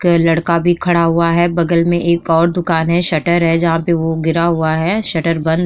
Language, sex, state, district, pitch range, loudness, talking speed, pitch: Hindi, female, Uttar Pradesh, Jyotiba Phule Nagar, 165-175 Hz, -14 LUFS, 245 wpm, 170 Hz